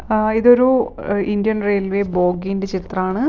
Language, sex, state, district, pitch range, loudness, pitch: Malayalam, female, Kerala, Wayanad, 190-220 Hz, -18 LUFS, 200 Hz